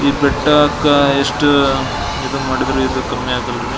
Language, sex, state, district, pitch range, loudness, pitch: Kannada, male, Karnataka, Belgaum, 140-145 Hz, -15 LUFS, 145 Hz